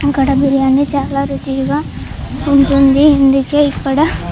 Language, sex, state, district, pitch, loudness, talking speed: Telugu, female, Andhra Pradesh, Chittoor, 275 Hz, -13 LUFS, 95 wpm